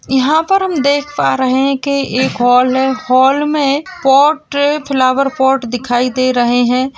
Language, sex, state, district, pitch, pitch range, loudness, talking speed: Hindi, female, Bihar, Gaya, 265 Hz, 255-285 Hz, -13 LUFS, 170 wpm